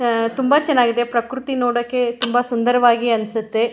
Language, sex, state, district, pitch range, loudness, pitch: Kannada, female, Karnataka, Shimoga, 235-250 Hz, -18 LUFS, 240 Hz